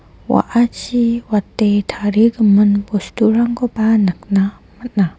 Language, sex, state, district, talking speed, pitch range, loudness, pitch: Garo, female, Meghalaya, West Garo Hills, 70 wpm, 205-235 Hz, -16 LUFS, 215 Hz